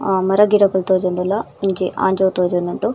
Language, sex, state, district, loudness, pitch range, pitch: Tulu, female, Karnataka, Dakshina Kannada, -17 LUFS, 185-200 Hz, 190 Hz